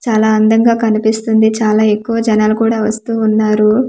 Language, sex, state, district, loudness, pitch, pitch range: Telugu, female, Andhra Pradesh, Manyam, -12 LUFS, 220 Hz, 215-225 Hz